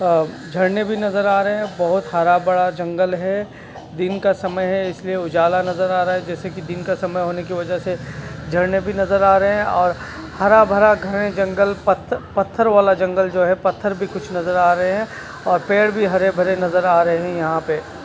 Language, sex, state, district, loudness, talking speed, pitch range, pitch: Hindi, male, Chhattisgarh, Raipur, -18 LUFS, 215 wpm, 175-195 Hz, 185 Hz